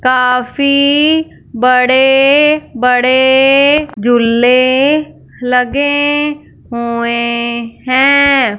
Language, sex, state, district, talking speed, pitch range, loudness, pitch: Hindi, female, Punjab, Fazilka, 50 wpm, 245-280 Hz, -11 LUFS, 255 Hz